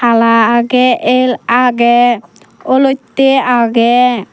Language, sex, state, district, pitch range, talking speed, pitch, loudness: Chakma, female, Tripura, Dhalai, 235-255 Hz, 85 wpm, 245 Hz, -10 LUFS